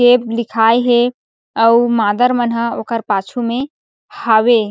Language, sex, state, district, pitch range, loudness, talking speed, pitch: Chhattisgarhi, female, Chhattisgarh, Sarguja, 225-245 Hz, -14 LUFS, 140 wpm, 235 Hz